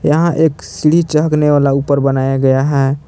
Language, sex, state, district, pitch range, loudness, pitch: Hindi, male, Jharkhand, Palamu, 135-155 Hz, -13 LUFS, 145 Hz